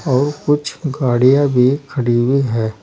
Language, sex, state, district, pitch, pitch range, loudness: Hindi, male, Uttar Pradesh, Saharanpur, 135 Hz, 125-145 Hz, -16 LUFS